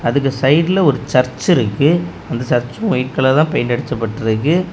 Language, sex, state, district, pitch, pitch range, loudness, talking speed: Tamil, male, Tamil Nadu, Kanyakumari, 130 Hz, 120-155 Hz, -16 LUFS, 140 wpm